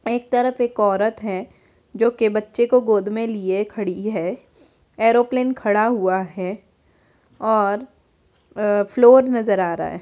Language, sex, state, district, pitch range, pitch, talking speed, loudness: Hindi, female, Bihar, Muzaffarpur, 200-240 Hz, 220 Hz, 145 wpm, -19 LUFS